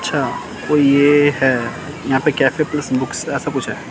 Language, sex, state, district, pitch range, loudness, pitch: Hindi, male, Chandigarh, Chandigarh, 130-145 Hz, -17 LUFS, 140 Hz